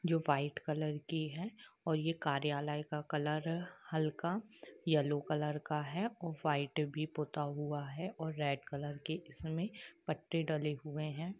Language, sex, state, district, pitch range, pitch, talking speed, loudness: Hindi, female, Jharkhand, Jamtara, 150-165 Hz, 155 Hz, 160 wpm, -38 LUFS